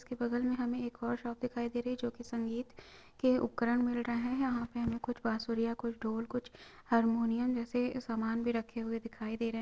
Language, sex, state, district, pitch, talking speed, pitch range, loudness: Hindi, female, Chhattisgarh, Raigarh, 235 Hz, 230 wpm, 230-245 Hz, -35 LUFS